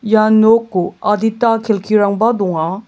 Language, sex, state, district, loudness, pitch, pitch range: Garo, male, Meghalaya, South Garo Hills, -14 LUFS, 215 Hz, 200-225 Hz